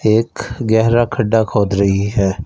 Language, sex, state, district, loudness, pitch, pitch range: Hindi, male, Punjab, Fazilka, -16 LUFS, 110 Hz, 100-115 Hz